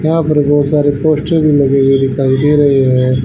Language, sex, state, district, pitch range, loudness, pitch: Hindi, male, Haryana, Rohtak, 135-150 Hz, -11 LUFS, 145 Hz